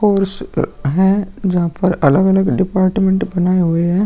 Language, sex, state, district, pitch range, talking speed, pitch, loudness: Hindi, male, Bihar, Vaishali, 175-195 Hz, 145 wpm, 190 Hz, -15 LUFS